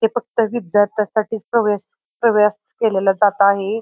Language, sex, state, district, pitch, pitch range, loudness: Marathi, female, Maharashtra, Pune, 215 Hz, 205-225 Hz, -18 LUFS